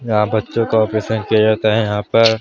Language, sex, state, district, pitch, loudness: Chhattisgarhi, male, Chhattisgarh, Sarguja, 110 Hz, -16 LUFS